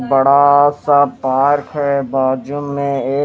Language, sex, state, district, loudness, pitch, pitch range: Hindi, male, Haryana, Rohtak, -14 LUFS, 140 Hz, 135-145 Hz